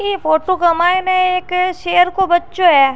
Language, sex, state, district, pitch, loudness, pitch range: Rajasthani, female, Rajasthan, Churu, 360 Hz, -14 LUFS, 345-370 Hz